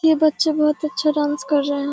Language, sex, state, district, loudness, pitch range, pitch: Hindi, female, Bihar, Kishanganj, -19 LUFS, 290-310 Hz, 300 Hz